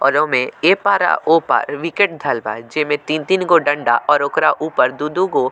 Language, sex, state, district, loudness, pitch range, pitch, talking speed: Bhojpuri, male, Bihar, Muzaffarpur, -16 LUFS, 140-165 Hz, 150 Hz, 205 wpm